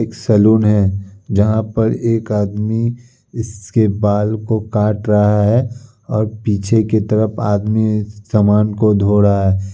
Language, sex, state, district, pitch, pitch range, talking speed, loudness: Hindi, male, Bihar, Kishanganj, 105 Hz, 105-110 Hz, 140 wpm, -15 LUFS